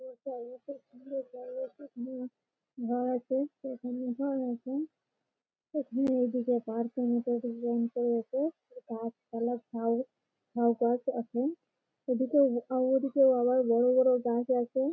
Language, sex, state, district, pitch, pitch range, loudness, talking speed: Bengali, female, West Bengal, Malda, 250 Hz, 240-265 Hz, -31 LUFS, 120 wpm